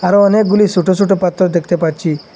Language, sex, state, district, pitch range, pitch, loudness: Bengali, male, Assam, Hailakandi, 170-200 Hz, 185 Hz, -13 LUFS